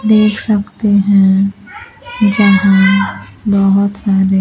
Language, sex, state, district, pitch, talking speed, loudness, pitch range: Hindi, female, Bihar, Kaimur, 200 Hz, 80 wpm, -12 LUFS, 195-210 Hz